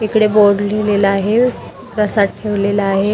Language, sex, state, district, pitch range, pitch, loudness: Marathi, female, Maharashtra, Mumbai Suburban, 200-215 Hz, 210 Hz, -14 LUFS